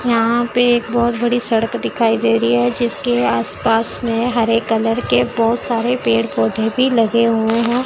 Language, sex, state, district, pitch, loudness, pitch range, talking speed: Hindi, female, Chandigarh, Chandigarh, 230 Hz, -16 LUFS, 220-240 Hz, 190 wpm